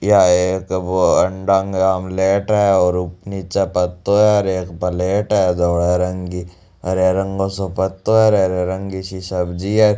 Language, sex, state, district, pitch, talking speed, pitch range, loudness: Hindi, male, Rajasthan, Churu, 95 Hz, 170 wpm, 90-95 Hz, -17 LUFS